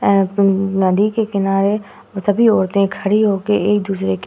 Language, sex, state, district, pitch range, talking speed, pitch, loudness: Hindi, female, Uttar Pradesh, Hamirpur, 195-205 Hz, 155 wpm, 200 Hz, -16 LUFS